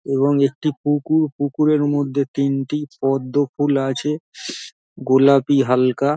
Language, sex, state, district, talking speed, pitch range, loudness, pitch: Bengali, male, West Bengal, Dakshin Dinajpur, 105 wpm, 135-145 Hz, -19 LUFS, 140 Hz